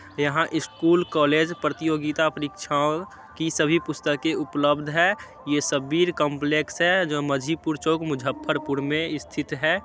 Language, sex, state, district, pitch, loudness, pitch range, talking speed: Hindi, male, Bihar, Muzaffarpur, 155 Hz, -24 LUFS, 145-160 Hz, 130 wpm